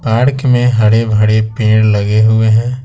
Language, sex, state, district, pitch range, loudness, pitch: Hindi, male, Bihar, Patna, 110-120 Hz, -11 LUFS, 110 Hz